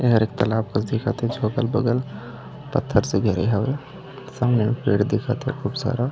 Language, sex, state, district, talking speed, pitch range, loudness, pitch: Chhattisgarhi, male, Chhattisgarh, Raigarh, 185 wpm, 105-130 Hz, -23 LUFS, 120 Hz